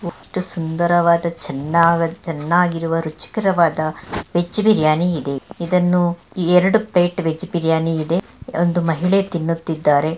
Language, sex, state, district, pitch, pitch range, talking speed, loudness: Kannada, female, Karnataka, Mysore, 170 Hz, 160-175 Hz, 100 wpm, -18 LUFS